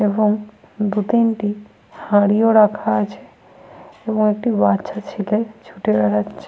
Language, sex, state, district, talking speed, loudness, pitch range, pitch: Bengali, female, Jharkhand, Sahebganj, 120 wpm, -18 LUFS, 205-220 Hz, 210 Hz